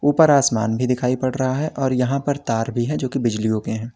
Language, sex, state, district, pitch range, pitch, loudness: Hindi, male, Uttar Pradesh, Lalitpur, 115-140 Hz, 130 Hz, -20 LUFS